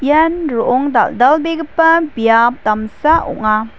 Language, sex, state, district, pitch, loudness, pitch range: Garo, female, Meghalaya, West Garo Hills, 275 Hz, -13 LUFS, 230-320 Hz